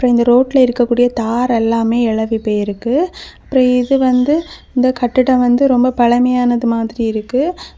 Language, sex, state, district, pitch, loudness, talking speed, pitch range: Tamil, female, Tamil Nadu, Kanyakumari, 245 Hz, -14 LUFS, 145 wpm, 230-255 Hz